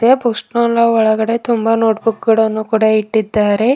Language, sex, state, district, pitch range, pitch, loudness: Kannada, female, Karnataka, Bidar, 220-235 Hz, 225 Hz, -14 LUFS